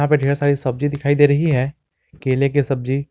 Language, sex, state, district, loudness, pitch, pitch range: Hindi, male, Jharkhand, Garhwa, -18 LUFS, 145 Hz, 135-145 Hz